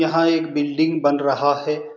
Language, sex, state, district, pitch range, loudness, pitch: Hindi, male, Bihar, Saran, 145-160 Hz, -19 LUFS, 150 Hz